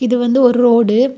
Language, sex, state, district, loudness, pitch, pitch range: Tamil, female, Tamil Nadu, Kanyakumari, -12 LUFS, 245 Hz, 240-255 Hz